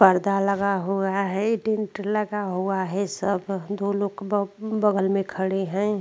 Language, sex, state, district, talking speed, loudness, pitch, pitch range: Hindi, female, Uttarakhand, Tehri Garhwal, 160 wpm, -25 LUFS, 200 Hz, 195-205 Hz